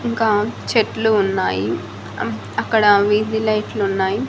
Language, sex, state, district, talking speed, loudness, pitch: Telugu, female, Andhra Pradesh, Annamaya, 110 wpm, -18 LUFS, 205 Hz